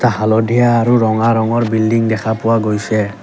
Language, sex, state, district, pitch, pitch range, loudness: Assamese, male, Assam, Kamrup Metropolitan, 110 Hz, 110-115 Hz, -14 LUFS